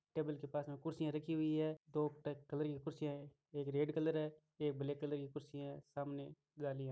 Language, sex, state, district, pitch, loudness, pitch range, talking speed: Hindi, male, Rajasthan, Churu, 150 Hz, -43 LUFS, 145-155 Hz, 235 wpm